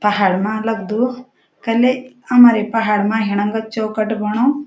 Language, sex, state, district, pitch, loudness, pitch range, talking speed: Garhwali, female, Uttarakhand, Uttarkashi, 220 Hz, -16 LUFS, 210-245 Hz, 130 wpm